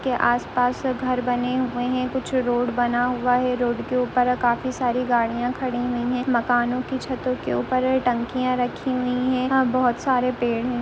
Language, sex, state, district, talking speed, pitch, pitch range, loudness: Hindi, female, Uttarakhand, Tehri Garhwal, 190 wpm, 250 Hz, 245-255 Hz, -23 LUFS